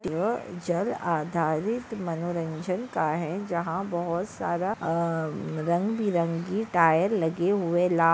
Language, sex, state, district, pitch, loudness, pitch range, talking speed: Hindi, female, Maharashtra, Dhule, 170 Hz, -27 LUFS, 165-185 Hz, 120 wpm